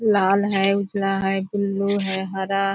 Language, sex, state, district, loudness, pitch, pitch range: Hindi, female, Bihar, Purnia, -22 LUFS, 195 Hz, 195-200 Hz